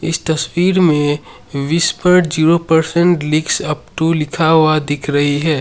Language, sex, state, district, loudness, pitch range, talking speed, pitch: Hindi, male, Assam, Sonitpur, -14 LUFS, 150-165 Hz, 150 wpm, 160 Hz